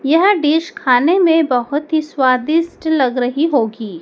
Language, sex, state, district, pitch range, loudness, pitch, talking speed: Hindi, female, Madhya Pradesh, Dhar, 250-325 Hz, -15 LUFS, 300 Hz, 150 wpm